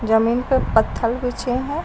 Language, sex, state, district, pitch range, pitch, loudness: Hindi, female, Uttar Pradesh, Lucknow, 225-255 Hz, 245 Hz, -20 LUFS